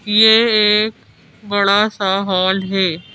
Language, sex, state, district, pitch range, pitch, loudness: Hindi, female, Madhya Pradesh, Bhopal, 190-215 Hz, 200 Hz, -14 LUFS